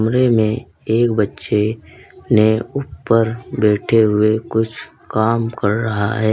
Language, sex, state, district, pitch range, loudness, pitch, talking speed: Hindi, male, Uttar Pradesh, Lalitpur, 110-115 Hz, -17 LUFS, 110 Hz, 105 wpm